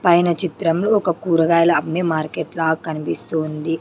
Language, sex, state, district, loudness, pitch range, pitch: Telugu, female, Andhra Pradesh, Sri Satya Sai, -19 LUFS, 160-175 Hz, 165 Hz